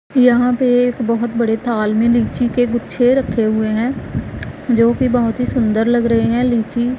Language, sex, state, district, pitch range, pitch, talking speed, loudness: Hindi, female, Punjab, Pathankot, 230-245 Hz, 235 Hz, 180 wpm, -16 LUFS